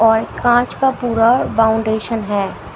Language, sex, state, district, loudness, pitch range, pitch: Hindi, female, Haryana, Jhajjar, -16 LUFS, 220-240 Hz, 225 Hz